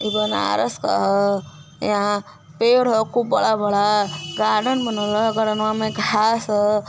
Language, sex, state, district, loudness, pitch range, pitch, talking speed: Hindi, female, Uttar Pradesh, Varanasi, -20 LUFS, 205-220 Hz, 210 Hz, 120 wpm